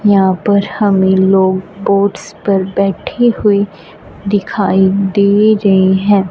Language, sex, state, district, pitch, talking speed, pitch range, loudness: Hindi, female, Punjab, Fazilka, 200 Hz, 115 wpm, 190-205 Hz, -12 LUFS